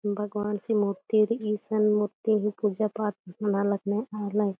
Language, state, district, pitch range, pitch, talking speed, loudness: Kurukh, Chhattisgarh, Jashpur, 205-215 Hz, 210 Hz, 155 wpm, -27 LUFS